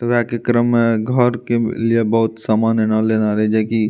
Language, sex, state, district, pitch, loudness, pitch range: Maithili, male, Bihar, Madhepura, 115 Hz, -17 LUFS, 110-120 Hz